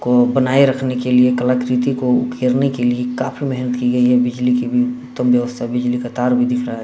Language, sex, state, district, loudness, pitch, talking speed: Hindi, male, Bihar, Saran, -17 LUFS, 125 Hz, 235 wpm